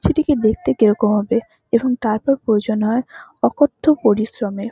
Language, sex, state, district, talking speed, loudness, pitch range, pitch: Bengali, female, West Bengal, North 24 Parganas, 125 wpm, -18 LUFS, 215-255 Hz, 225 Hz